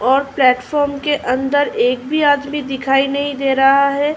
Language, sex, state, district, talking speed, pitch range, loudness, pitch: Hindi, female, Uttar Pradesh, Ghazipur, 175 wpm, 270-290 Hz, -16 LUFS, 280 Hz